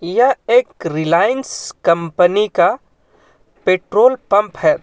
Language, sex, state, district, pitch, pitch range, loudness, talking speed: Hindi, male, Jharkhand, Ranchi, 205 Hz, 170-255 Hz, -15 LUFS, 100 wpm